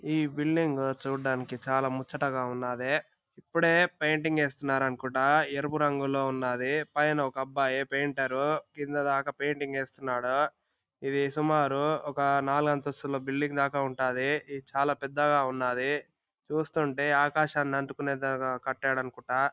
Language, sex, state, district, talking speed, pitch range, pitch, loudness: Telugu, male, Andhra Pradesh, Anantapur, 115 wpm, 135-145 Hz, 140 Hz, -29 LUFS